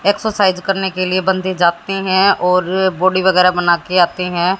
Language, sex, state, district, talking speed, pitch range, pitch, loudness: Hindi, female, Haryana, Jhajjar, 185 wpm, 180-190 Hz, 185 Hz, -15 LUFS